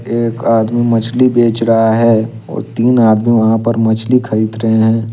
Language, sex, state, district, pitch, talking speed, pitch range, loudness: Hindi, male, Jharkhand, Deoghar, 115 Hz, 175 wpm, 110-115 Hz, -12 LUFS